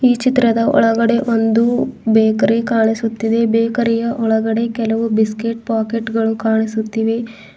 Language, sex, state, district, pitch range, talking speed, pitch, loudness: Kannada, female, Karnataka, Bidar, 225-230 Hz, 105 wpm, 225 Hz, -16 LUFS